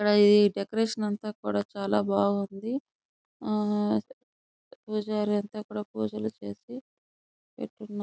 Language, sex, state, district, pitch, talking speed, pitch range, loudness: Telugu, female, Andhra Pradesh, Chittoor, 210 Hz, 80 wpm, 200-215 Hz, -28 LUFS